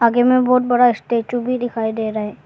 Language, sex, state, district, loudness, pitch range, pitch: Hindi, male, Arunachal Pradesh, Lower Dibang Valley, -17 LUFS, 225-245 Hz, 245 Hz